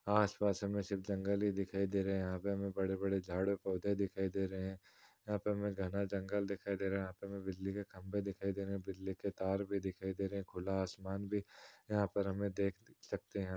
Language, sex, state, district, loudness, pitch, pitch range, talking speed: Hindi, male, Uttar Pradesh, Muzaffarnagar, -39 LUFS, 100 Hz, 95-100 Hz, 245 wpm